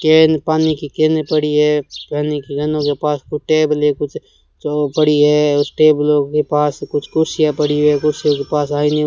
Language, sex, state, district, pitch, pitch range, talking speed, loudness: Hindi, male, Rajasthan, Bikaner, 150 Hz, 145-155 Hz, 190 wpm, -16 LUFS